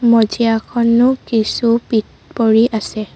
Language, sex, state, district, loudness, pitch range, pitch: Assamese, female, Assam, Sonitpur, -15 LUFS, 220-235 Hz, 230 Hz